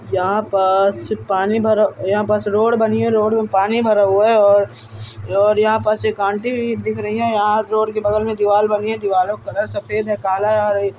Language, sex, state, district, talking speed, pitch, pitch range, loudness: Hindi, male, Bihar, Araria, 225 wpm, 210 Hz, 200-220 Hz, -17 LUFS